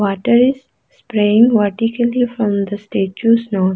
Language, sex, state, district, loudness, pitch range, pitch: English, female, Arunachal Pradesh, Lower Dibang Valley, -15 LUFS, 205-240 Hz, 220 Hz